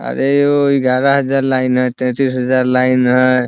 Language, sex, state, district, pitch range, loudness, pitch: Hindi, male, Bihar, Muzaffarpur, 125-135 Hz, -14 LUFS, 130 Hz